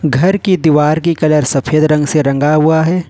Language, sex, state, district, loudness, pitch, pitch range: Hindi, male, Jharkhand, Ranchi, -12 LUFS, 155 Hz, 150-165 Hz